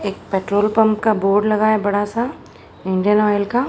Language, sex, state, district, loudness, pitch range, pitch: Hindi, female, Uttar Pradesh, Jalaun, -17 LUFS, 200-215 Hz, 210 Hz